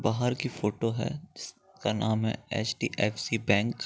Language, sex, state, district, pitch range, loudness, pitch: Hindi, male, Bihar, East Champaran, 110-120 Hz, -30 LUFS, 115 Hz